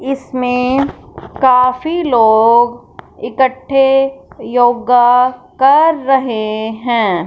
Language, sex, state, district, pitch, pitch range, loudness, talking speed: Hindi, female, Punjab, Fazilka, 250 Hz, 235-270 Hz, -13 LUFS, 65 wpm